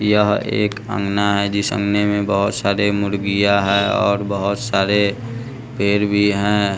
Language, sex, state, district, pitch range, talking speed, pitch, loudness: Hindi, male, Bihar, West Champaran, 100-105 Hz, 150 wpm, 100 Hz, -18 LUFS